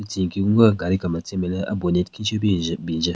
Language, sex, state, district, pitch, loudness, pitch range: Rengma, male, Nagaland, Kohima, 95 Hz, -21 LUFS, 85-105 Hz